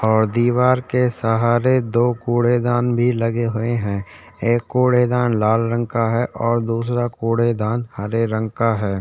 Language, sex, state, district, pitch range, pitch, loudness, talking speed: Hindi, male, Chhattisgarh, Sukma, 115-120 Hz, 115 Hz, -19 LUFS, 155 wpm